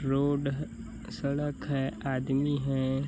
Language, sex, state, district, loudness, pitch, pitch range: Chhattisgarhi, male, Chhattisgarh, Bilaspur, -31 LUFS, 140 Hz, 135-145 Hz